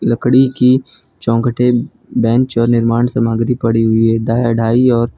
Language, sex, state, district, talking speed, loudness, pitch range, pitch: Hindi, male, Gujarat, Valsad, 160 wpm, -14 LUFS, 115-125 Hz, 120 Hz